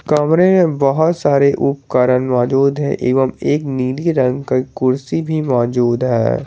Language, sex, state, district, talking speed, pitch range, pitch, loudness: Hindi, male, Jharkhand, Garhwa, 150 wpm, 125-150 Hz, 135 Hz, -15 LUFS